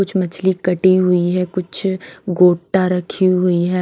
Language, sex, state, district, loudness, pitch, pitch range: Hindi, female, Maharashtra, Mumbai Suburban, -16 LUFS, 180 Hz, 180-185 Hz